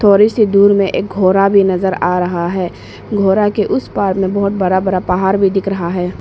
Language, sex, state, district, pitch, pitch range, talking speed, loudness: Hindi, female, Arunachal Pradesh, Papum Pare, 195 Hz, 185-200 Hz, 230 wpm, -14 LUFS